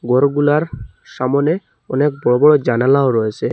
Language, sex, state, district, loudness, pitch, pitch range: Bengali, male, Assam, Hailakandi, -15 LUFS, 140 Hz, 125-145 Hz